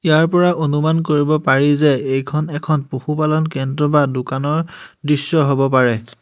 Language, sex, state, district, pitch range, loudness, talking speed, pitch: Assamese, male, Assam, Hailakandi, 135-155 Hz, -17 LUFS, 145 wpm, 150 Hz